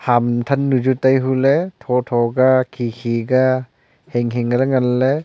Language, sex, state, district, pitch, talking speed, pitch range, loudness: Wancho, male, Arunachal Pradesh, Longding, 130 Hz, 125 wpm, 120-130 Hz, -17 LUFS